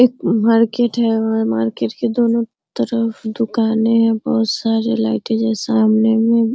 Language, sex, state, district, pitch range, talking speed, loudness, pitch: Hindi, female, Bihar, Araria, 220-230 Hz, 140 wpm, -17 LUFS, 225 Hz